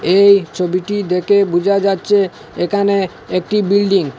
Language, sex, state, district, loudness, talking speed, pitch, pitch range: Bengali, male, Assam, Hailakandi, -15 LUFS, 130 wpm, 195 Hz, 180-200 Hz